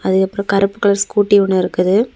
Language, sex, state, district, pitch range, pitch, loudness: Tamil, female, Tamil Nadu, Kanyakumari, 190-205 Hz, 200 Hz, -15 LUFS